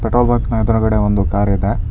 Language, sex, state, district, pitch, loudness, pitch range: Kannada, male, Karnataka, Bangalore, 110 Hz, -16 LUFS, 100-115 Hz